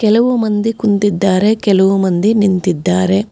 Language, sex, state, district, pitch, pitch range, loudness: Kannada, female, Karnataka, Bangalore, 200 Hz, 190-215 Hz, -13 LUFS